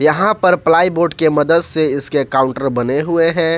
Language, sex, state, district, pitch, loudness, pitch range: Hindi, male, Jharkhand, Ranchi, 165 Hz, -14 LUFS, 145-170 Hz